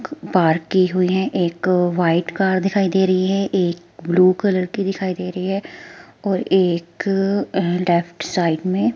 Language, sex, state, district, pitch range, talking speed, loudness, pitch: Hindi, female, Himachal Pradesh, Shimla, 175-195 Hz, 170 wpm, -19 LUFS, 185 Hz